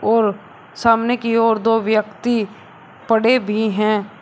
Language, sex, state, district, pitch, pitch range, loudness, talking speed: Hindi, male, Uttar Pradesh, Shamli, 220 Hz, 210-230 Hz, -17 LUFS, 130 wpm